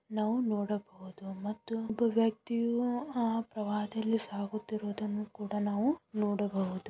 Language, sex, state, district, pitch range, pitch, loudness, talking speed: Kannada, female, Karnataka, Belgaum, 205-225 Hz, 215 Hz, -34 LUFS, 105 wpm